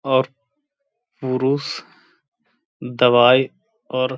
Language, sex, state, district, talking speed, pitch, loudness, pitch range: Hindi, male, Bihar, Gaya, 70 wpm, 135 Hz, -18 LUFS, 130-210 Hz